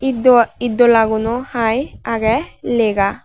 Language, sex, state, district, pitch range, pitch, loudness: Chakma, female, Tripura, Unakoti, 225-245 Hz, 235 Hz, -16 LUFS